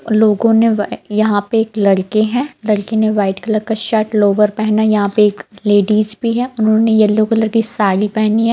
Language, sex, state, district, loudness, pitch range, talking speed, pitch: Hindi, female, Jharkhand, Jamtara, -14 LUFS, 210-225 Hz, 210 wpm, 215 Hz